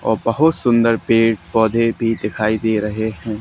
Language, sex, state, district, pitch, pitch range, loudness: Hindi, male, Haryana, Charkhi Dadri, 115 Hz, 110-115 Hz, -17 LUFS